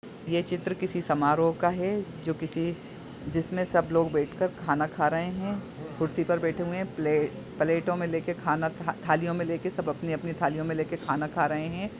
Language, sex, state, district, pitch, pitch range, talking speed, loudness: Hindi, male, Bihar, Muzaffarpur, 165 Hz, 155-180 Hz, 195 wpm, -29 LUFS